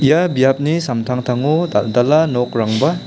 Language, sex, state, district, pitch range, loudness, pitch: Garo, male, Meghalaya, South Garo Hills, 120-155 Hz, -16 LUFS, 130 Hz